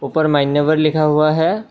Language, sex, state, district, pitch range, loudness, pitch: Hindi, male, Assam, Kamrup Metropolitan, 145-155 Hz, -15 LUFS, 155 Hz